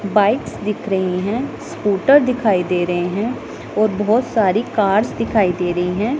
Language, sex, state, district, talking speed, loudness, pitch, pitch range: Hindi, female, Punjab, Pathankot, 165 wpm, -18 LUFS, 210 Hz, 185-230 Hz